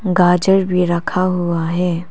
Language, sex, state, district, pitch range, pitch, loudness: Hindi, female, Arunachal Pradesh, Papum Pare, 175-185 Hz, 180 Hz, -16 LUFS